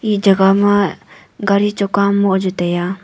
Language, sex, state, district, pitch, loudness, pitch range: Wancho, female, Arunachal Pradesh, Longding, 200 Hz, -15 LUFS, 190-205 Hz